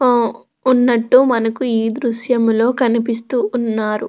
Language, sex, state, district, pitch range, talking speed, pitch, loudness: Telugu, female, Andhra Pradesh, Krishna, 225-250 Hz, 105 wpm, 235 Hz, -16 LUFS